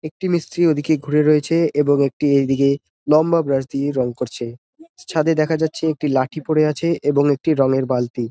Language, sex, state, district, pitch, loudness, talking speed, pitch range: Bengali, male, West Bengal, Jalpaiguri, 150 Hz, -18 LUFS, 175 wpm, 135-160 Hz